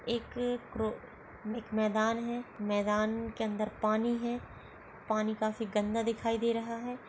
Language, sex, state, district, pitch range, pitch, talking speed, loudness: Hindi, female, Goa, North and South Goa, 215-235 Hz, 225 Hz, 145 wpm, -33 LUFS